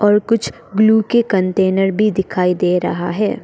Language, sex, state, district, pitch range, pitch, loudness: Hindi, female, Arunachal Pradesh, Papum Pare, 185-215 Hz, 195 Hz, -16 LUFS